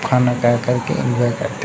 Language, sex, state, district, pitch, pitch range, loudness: Hindi, male, Uttar Pradesh, Hamirpur, 125 Hz, 120-125 Hz, -18 LUFS